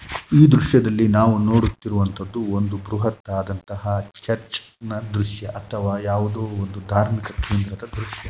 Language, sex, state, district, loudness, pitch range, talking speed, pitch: Kannada, male, Karnataka, Shimoga, -21 LUFS, 100-110 Hz, 110 wpm, 105 Hz